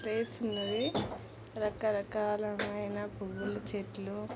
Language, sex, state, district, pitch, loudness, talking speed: Telugu, female, Andhra Pradesh, Krishna, 200 Hz, -36 LUFS, 85 wpm